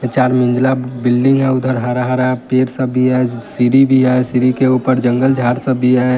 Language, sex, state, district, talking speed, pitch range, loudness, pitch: Hindi, male, Bihar, West Champaran, 205 wpm, 125-130 Hz, -14 LUFS, 125 Hz